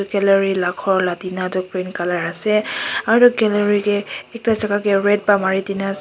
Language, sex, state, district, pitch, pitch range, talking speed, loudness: Nagamese, male, Nagaland, Kohima, 195 Hz, 185-205 Hz, 210 wpm, -18 LUFS